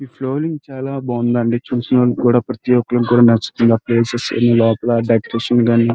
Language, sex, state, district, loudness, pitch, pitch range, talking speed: Telugu, male, Andhra Pradesh, Krishna, -16 LUFS, 120 Hz, 115-125 Hz, 140 wpm